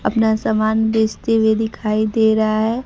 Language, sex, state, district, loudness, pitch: Hindi, female, Bihar, Kaimur, -17 LUFS, 220 Hz